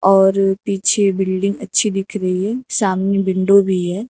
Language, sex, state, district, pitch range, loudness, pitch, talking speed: Hindi, female, Uttar Pradesh, Lucknow, 190-200 Hz, -16 LUFS, 195 Hz, 160 wpm